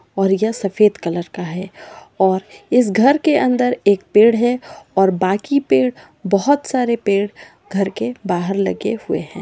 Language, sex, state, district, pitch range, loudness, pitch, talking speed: Magahi, female, Bihar, Samastipur, 190-245 Hz, -17 LUFS, 200 Hz, 165 wpm